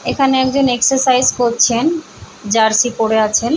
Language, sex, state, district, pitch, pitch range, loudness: Bengali, female, West Bengal, Paschim Medinipur, 245 Hz, 225-265 Hz, -14 LUFS